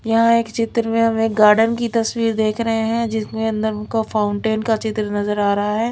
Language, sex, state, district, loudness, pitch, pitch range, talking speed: Hindi, female, Bihar, Patna, -18 LUFS, 225 Hz, 215-230 Hz, 225 wpm